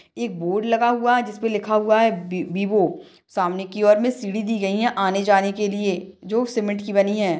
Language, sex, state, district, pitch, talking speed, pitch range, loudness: Hindi, female, Maharashtra, Dhule, 210 Hz, 225 wpm, 195-225 Hz, -21 LUFS